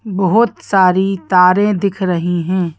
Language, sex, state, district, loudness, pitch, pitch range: Hindi, female, Madhya Pradesh, Bhopal, -14 LUFS, 190 Hz, 180-200 Hz